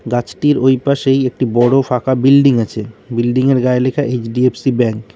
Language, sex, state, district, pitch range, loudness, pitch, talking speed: Bengali, male, West Bengal, Cooch Behar, 120-135 Hz, -14 LUFS, 125 Hz, 165 wpm